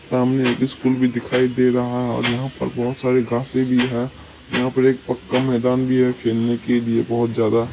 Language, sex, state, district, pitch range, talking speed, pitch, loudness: Maithili, male, Bihar, Supaul, 120-130 Hz, 225 wpm, 125 Hz, -20 LUFS